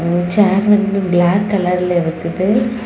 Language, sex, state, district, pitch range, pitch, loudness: Tamil, female, Tamil Nadu, Kanyakumari, 175-205 Hz, 190 Hz, -15 LUFS